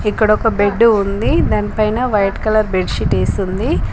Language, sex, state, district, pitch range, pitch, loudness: Telugu, female, Telangana, Komaram Bheem, 185-215 Hz, 210 Hz, -15 LUFS